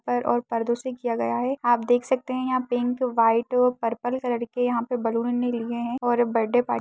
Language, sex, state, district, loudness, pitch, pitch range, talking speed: Hindi, female, Uttar Pradesh, Deoria, -24 LUFS, 240 Hz, 230-245 Hz, 240 wpm